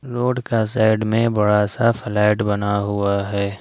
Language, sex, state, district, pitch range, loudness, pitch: Hindi, male, Jharkhand, Ranchi, 100-115 Hz, -19 LUFS, 105 Hz